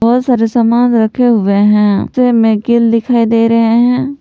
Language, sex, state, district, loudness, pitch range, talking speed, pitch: Hindi, female, Jharkhand, Palamu, -11 LUFS, 225-245 Hz, 185 wpm, 230 Hz